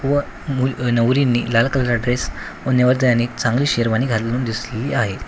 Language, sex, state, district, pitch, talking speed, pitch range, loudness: Marathi, male, Maharashtra, Washim, 125 Hz, 160 wpm, 115-130 Hz, -19 LUFS